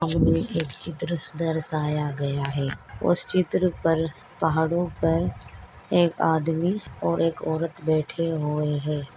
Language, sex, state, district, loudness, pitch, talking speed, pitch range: Hindi, female, Maharashtra, Chandrapur, -25 LUFS, 160 Hz, 120 wpm, 140-165 Hz